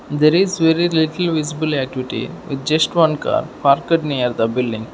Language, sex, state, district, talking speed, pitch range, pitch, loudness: English, male, Arunachal Pradesh, Lower Dibang Valley, 155 wpm, 135-165 Hz, 155 Hz, -18 LUFS